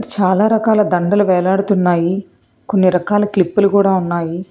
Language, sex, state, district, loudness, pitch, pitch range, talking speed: Telugu, female, Telangana, Hyderabad, -15 LUFS, 190 Hz, 180-205 Hz, 120 wpm